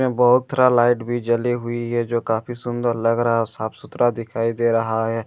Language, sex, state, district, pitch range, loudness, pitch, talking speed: Hindi, male, Bihar, Katihar, 115-120 Hz, -20 LUFS, 120 Hz, 240 wpm